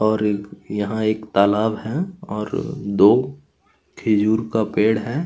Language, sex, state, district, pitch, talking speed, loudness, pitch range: Hindi, male, Chhattisgarh, Kabirdham, 110 Hz, 135 wpm, -20 LUFS, 105-115 Hz